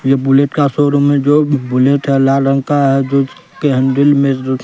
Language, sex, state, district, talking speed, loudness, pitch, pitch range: Hindi, male, Bihar, West Champaran, 205 wpm, -13 LUFS, 140 Hz, 135-145 Hz